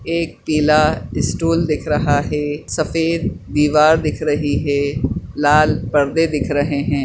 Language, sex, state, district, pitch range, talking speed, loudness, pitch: Hindi, male, Chhattisgarh, Bastar, 145-155 Hz, 135 wpm, -17 LUFS, 150 Hz